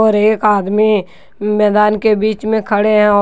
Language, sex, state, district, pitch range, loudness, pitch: Hindi, male, Jharkhand, Deoghar, 210-215 Hz, -13 LUFS, 210 Hz